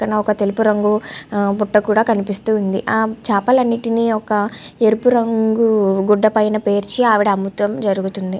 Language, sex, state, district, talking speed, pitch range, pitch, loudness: Telugu, female, Andhra Pradesh, Guntur, 135 wpm, 205-220 Hz, 215 Hz, -17 LUFS